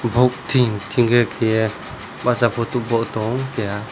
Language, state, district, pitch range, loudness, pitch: Kokborok, Tripura, West Tripura, 110-125 Hz, -19 LUFS, 115 Hz